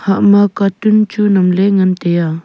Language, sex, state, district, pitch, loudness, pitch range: Wancho, female, Arunachal Pradesh, Longding, 195 Hz, -12 LUFS, 185-205 Hz